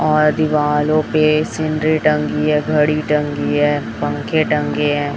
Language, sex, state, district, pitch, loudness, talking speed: Hindi, male, Chhattisgarh, Raipur, 150 Hz, -16 LUFS, 140 wpm